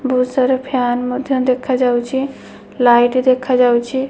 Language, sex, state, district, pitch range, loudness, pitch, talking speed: Odia, female, Odisha, Malkangiri, 245-260 Hz, -15 LUFS, 255 Hz, 105 wpm